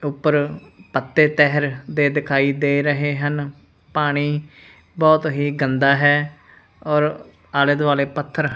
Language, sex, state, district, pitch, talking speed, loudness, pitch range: Punjabi, male, Punjab, Fazilka, 145 Hz, 120 wpm, -19 LUFS, 145-150 Hz